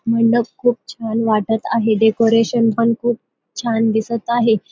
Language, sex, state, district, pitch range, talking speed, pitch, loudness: Marathi, female, Maharashtra, Dhule, 225-235 Hz, 140 wpm, 230 Hz, -17 LUFS